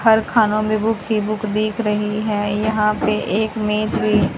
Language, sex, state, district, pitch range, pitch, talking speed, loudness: Hindi, female, Haryana, Jhajjar, 210-220 Hz, 215 Hz, 190 wpm, -19 LUFS